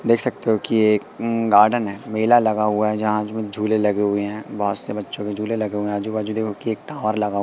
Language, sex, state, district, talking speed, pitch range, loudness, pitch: Hindi, male, Madhya Pradesh, Katni, 260 wpm, 105-110 Hz, -20 LUFS, 105 Hz